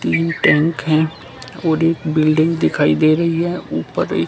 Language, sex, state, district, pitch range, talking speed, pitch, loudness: Hindi, male, Haryana, Charkhi Dadri, 155-165 Hz, 155 wpm, 160 Hz, -16 LUFS